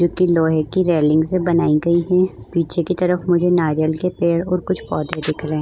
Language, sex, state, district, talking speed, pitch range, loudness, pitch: Hindi, female, Goa, North and South Goa, 235 wpm, 155-180 Hz, -18 LUFS, 170 Hz